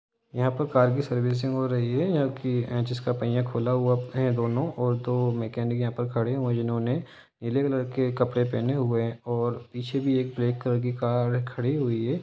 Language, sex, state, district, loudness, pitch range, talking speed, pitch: Hindi, male, Jharkhand, Sahebganj, -27 LUFS, 120-130 Hz, 195 wpm, 125 Hz